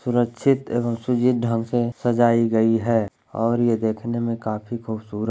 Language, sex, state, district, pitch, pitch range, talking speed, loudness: Hindi, male, Bihar, Lakhisarai, 115 Hz, 110-120 Hz, 170 wpm, -22 LUFS